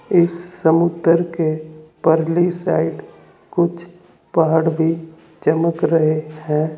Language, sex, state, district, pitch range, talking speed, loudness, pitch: Hindi, male, Uttar Pradesh, Saharanpur, 160-170 Hz, 95 wpm, -18 LUFS, 165 Hz